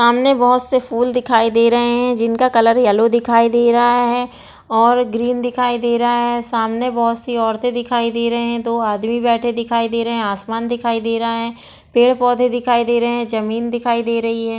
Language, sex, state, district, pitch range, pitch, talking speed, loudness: Hindi, female, Chhattisgarh, Bilaspur, 230-245 Hz, 235 Hz, 215 wpm, -16 LUFS